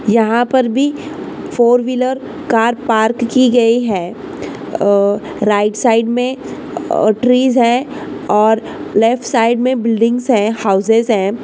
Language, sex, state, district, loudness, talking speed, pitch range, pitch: Hindi, female, Maharashtra, Solapur, -14 LUFS, 130 wpm, 220-250 Hz, 235 Hz